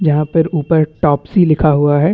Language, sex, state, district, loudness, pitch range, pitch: Hindi, male, Chhattisgarh, Bastar, -13 LUFS, 145-165 Hz, 155 Hz